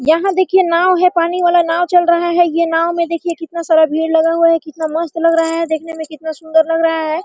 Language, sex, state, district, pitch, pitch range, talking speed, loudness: Hindi, female, Bihar, Araria, 330 Hz, 320-345 Hz, 265 wpm, -14 LUFS